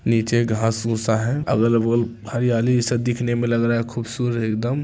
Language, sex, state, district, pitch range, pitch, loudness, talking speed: Hindi, male, Bihar, Jamui, 115-120 Hz, 115 Hz, -21 LUFS, 175 wpm